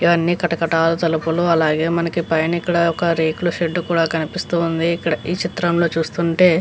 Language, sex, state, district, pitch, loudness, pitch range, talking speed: Telugu, female, Andhra Pradesh, Visakhapatnam, 170 Hz, -18 LUFS, 165-170 Hz, 145 wpm